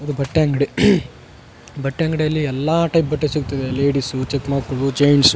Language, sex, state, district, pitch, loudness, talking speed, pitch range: Kannada, male, Karnataka, Raichur, 140 Hz, -19 LUFS, 155 wpm, 135-150 Hz